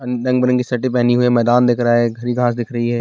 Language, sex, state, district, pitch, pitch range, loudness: Hindi, male, Bihar, Bhagalpur, 120 Hz, 120-125 Hz, -16 LUFS